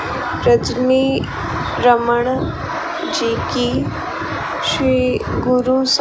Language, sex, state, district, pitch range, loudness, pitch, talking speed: Hindi, female, Rajasthan, Bikaner, 245-260 Hz, -17 LUFS, 255 Hz, 80 wpm